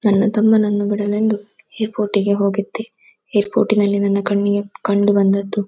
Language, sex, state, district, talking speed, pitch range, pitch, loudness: Kannada, female, Karnataka, Dakshina Kannada, 105 wpm, 200-215 Hz, 205 Hz, -17 LUFS